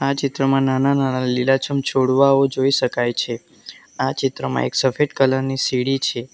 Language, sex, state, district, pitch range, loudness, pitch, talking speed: Gujarati, male, Gujarat, Valsad, 125-135 Hz, -19 LUFS, 135 Hz, 150 wpm